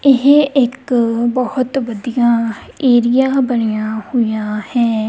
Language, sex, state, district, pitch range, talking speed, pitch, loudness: Punjabi, female, Punjab, Kapurthala, 225-265 Hz, 95 wpm, 240 Hz, -15 LUFS